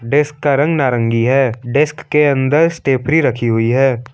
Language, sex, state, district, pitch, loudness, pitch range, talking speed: Hindi, male, Jharkhand, Palamu, 135 Hz, -14 LUFS, 120-150 Hz, 175 wpm